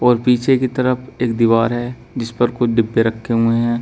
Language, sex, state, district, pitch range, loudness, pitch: Hindi, male, Uttar Pradesh, Shamli, 115-125 Hz, -17 LUFS, 120 Hz